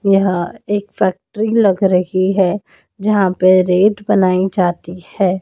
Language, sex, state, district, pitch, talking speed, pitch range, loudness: Hindi, female, Madhya Pradesh, Dhar, 190 Hz, 135 wpm, 185-205 Hz, -15 LUFS